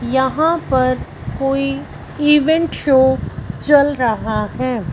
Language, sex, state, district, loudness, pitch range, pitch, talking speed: Hindi, female, Punjab, Fazilka, -16 LUFS, 255-295 Hz, 265 Hz, 95 wpm